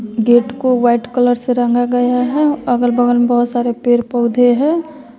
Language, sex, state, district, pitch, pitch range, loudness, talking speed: Hindi, female, Bihar, West Champaran, 245 Hz, 240-250 Hz, -14 LUFS, 185 wpm